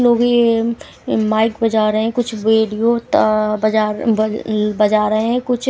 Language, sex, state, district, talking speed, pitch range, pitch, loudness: Hindi, female, Himachal Pradesh, Shimla, 160 wpm, 215-235 Hz, 220 Hz, -16 LUFS